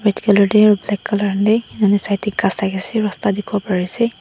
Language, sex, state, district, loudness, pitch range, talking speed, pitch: Nagamese, female, Nagaland, Dimapur, -17 LUFS, 200-215 Hz, 155 wpm, 205 Hz